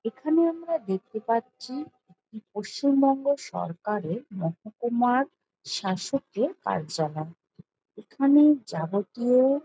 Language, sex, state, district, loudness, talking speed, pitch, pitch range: Bengali, female, West Bengal, Jhargram, -26 LUFS, 75 wpm, 240 Hz, 190-275 Hz